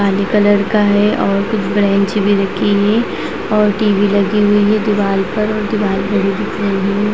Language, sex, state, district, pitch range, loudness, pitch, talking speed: Hindi, female, Bihar, Vaishali, 200-210 Hz, -14 LUFS, 205 Hz, 170 wpm